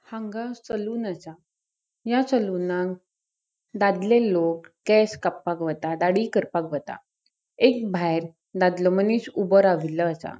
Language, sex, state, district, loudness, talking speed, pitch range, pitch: Konkani, female, Goa, North and South Goa, -24 LUFS, 115 wpm, 170-220 Hz, 190 Hz